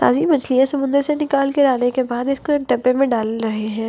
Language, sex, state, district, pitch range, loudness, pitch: Hindi, female, Delhi, New Delhi, 240-280 Hz, -18 LUFS, 265 Hz